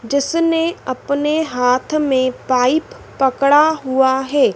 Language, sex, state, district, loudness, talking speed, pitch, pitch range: Hindi, female, Madhya Pradesh, Dhar, -16 LUFS, 105 wpm, 275 Hz, 260-305 Hz